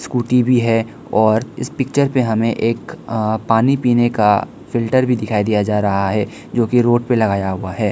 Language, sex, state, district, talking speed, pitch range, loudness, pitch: Hindi, male, Arunachal Pradesh, Lower Dibang Valley, 205 wpm, 105-120 Hz, -17 LUFS, 115 Hz